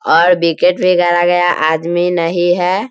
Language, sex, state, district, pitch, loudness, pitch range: Hindi, male, Bihar, Sitamarhi, 175 Hz, -13 LUFS, 170-180 Hz